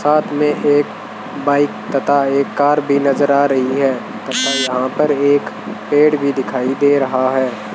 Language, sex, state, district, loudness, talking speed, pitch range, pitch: Hindi, male, Rajasthan, Bikaner, -15 LUFS, 170 wpm, 130-145 Hz, 140 Hz